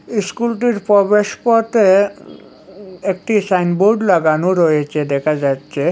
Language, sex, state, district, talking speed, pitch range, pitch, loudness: Bengali, male, Assam, Hailakandi, 80 wpm, 170-210 Hz, 195 Hz, -15 LUFS